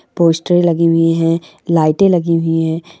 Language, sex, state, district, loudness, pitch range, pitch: Angika, female, Bihar, Madhepura, -14 LUFS, 165-170 Hz, 165 Hz